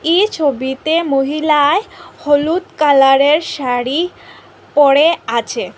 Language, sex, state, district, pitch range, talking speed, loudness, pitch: Bengali, female, Assam, Hailakandi, 270-330 Hz, 95 wpm, -14 LUFS, 295 Hz